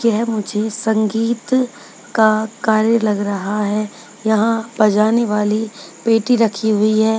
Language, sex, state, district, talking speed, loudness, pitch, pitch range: Hindi, female, Bihar, Purnia, 125 wpm, -17 LUFS, 220 Hz, 210-225 Hz